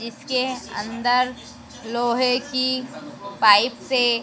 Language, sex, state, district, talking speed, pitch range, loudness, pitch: Hindi, female, Madhya Pradesh, Dhar, 85 wpm, 235-255 Hz, -21 LUFS, 250 Hz